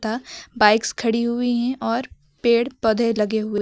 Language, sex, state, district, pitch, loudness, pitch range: Hindi, female, Uttar Pradesh, Lucknow, 230 Hz, -21 LUFS, 215-240 Hz